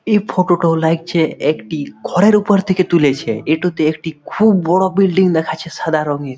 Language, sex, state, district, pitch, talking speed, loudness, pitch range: Bengali, male, West Bengal, Malda, 165 Hz, 190 wpm, -15 LUFS, 155-190 Hz